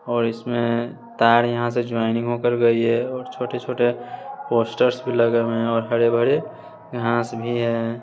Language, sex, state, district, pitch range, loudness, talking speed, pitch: Hindi, male, Bihar, West Champaran, 115-120 Hz, -21 LUFS, 155 wpm, 120 Hz